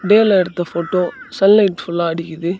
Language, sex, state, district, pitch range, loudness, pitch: Tamil, male, Tamil Nadu, Namakkal, 170-195 Hz, -16 LUFS, 180 Hz